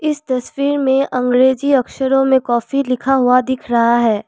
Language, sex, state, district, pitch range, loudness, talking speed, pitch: Hindi, female, Assam, Kamrup Metropolitan, 250-275 Hz, -15 LUFS, 170 wpm, 260 Hz